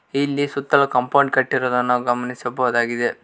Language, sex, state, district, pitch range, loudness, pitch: Kannada, male, Karnataka, Koppal, 125-140 Hz, -19 LUFS, 125 Hz